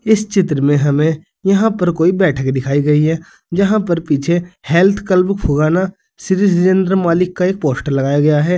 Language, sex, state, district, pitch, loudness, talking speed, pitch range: Hindi, male, Uttar Pradesh, Saharanpur, 175 Hz, -15 LUFS, 180 wpm, 150-190 Hz